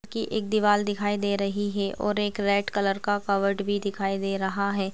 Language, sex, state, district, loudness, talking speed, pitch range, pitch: Hindi, female, Uttar Pradesh, Ghazipur, -26 LUFS, 220 wpm, 200-205 Hz, 200 Hz